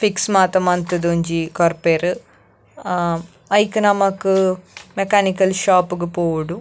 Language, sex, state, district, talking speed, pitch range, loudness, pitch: Tulu, female, Karnataka, Dakshina Kannada, 110 wpm, 170-195 Hz, -18 LUFS, 180 Hz